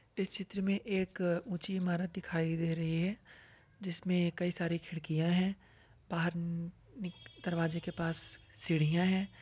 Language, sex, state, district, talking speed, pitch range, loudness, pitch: Hindi, female, Uttar Pradesh, Varanasi, 140 wpm, 165-185 Hz, -35 LUFS, 175 Hz